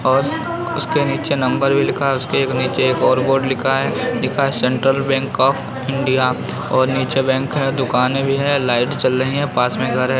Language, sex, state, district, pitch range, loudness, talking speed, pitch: Hindi, male, Uttar Pradesh, Varanasi, 130-135 Hz, -17 LUFS, 220 wpm, 130 Hz